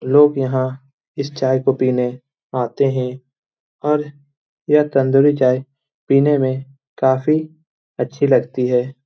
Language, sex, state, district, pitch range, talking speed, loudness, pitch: Hindi, male, Bihar, Jamui, 130-145 Hz, 125 wpm, -18 LUFS, 135 Hz